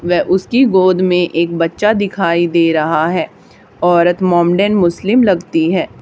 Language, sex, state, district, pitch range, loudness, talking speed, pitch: Hindi, female, Haryana, Charkhi Dadri, 170-190 Hz, -13 LUFS, 150 wpm, 175 Hz